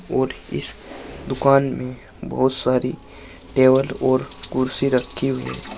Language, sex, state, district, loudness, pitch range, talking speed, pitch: Hindi, male, Uttar Pradesh, Saharanpur, -20 LUFS, 125-135 Hz, 125 wpm, 130 Hz